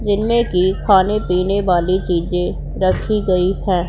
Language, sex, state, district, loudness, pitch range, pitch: Hindi, female, Punjab, Pathankot, -17 LUFS, 180-205 Hz, 185 Hz